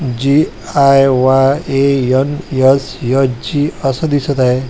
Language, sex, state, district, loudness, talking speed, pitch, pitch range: Marathi, male, Maharashtra, Washim, -13 LUFS, 50 wpm, 135 Hz, 130-140 Hz